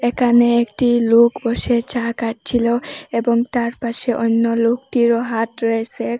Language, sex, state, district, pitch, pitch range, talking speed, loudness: Bengali, female, Assam, Hailakandi, 235 Hz, 230-240 Hz, 135 wpm, -17 LUFS